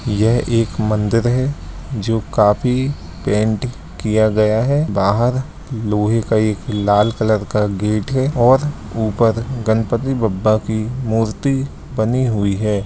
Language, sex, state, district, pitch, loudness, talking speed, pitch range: Hindi, male, Bihar, Lakhisarai, 110 Hz, -17 LUFS, 130 wpm, 105-125 Hz